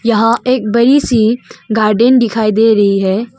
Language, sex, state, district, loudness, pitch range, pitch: Hindi, female, Arunachal Pradesh, Longding, -11 LUFS, 215-240 Hz, 225 Hz